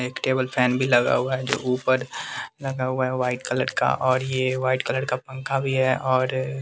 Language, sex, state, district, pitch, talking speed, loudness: Hindi, male, Bihar, West Champaran, 130 Hz, 225 wpm, -23 LUFS